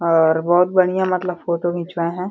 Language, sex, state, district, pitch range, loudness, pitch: Hindi, female, Uttar Pradesh, Deoria, 170-180 Hz, -18 LUFS, 175 Hz